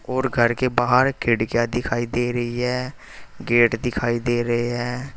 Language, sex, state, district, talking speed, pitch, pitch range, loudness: Hindi, male, Uttar Pradesh, Saharanpur, 160 wpm, 120 Hz, 120-125 Hz, -21 LUFS